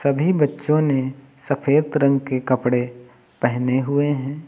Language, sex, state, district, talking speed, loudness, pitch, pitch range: Hindi, male, Uttar Pradesh, Lucknow, 135 wpm, -20 LUFS, 140 Hz, 130-145 Hz